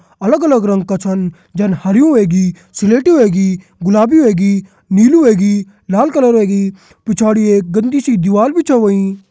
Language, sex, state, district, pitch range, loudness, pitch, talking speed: Kumaoni, male, Uttarakhand, Tehri Garhwal, 195-230 Hz, -12 LUFS, 205 Hz, 160 wpm